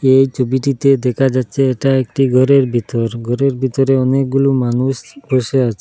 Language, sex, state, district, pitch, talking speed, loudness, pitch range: Bengali, male, Assam, Hailakandi, 130 Hz, 145 wpm, -15 LUFS, 125-135 Hz